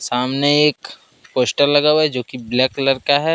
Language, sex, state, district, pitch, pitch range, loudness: Hindi, male, Jharkhand, Ranchi, 135 Hz, 125-145 Hz, -17 LUFS